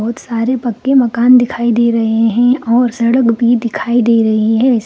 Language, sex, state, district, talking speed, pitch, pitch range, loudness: Hindi, female, Bihar, Begusarai, 185 wpm, 235 Hz, 230-245 Hz, -12 LUFS